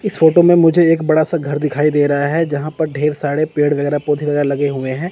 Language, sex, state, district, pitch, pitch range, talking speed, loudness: Hindi, male, Chandigarh, Chandigarh, 150 Hz, 145-165 Hz, 280 wpm, -15 LUFS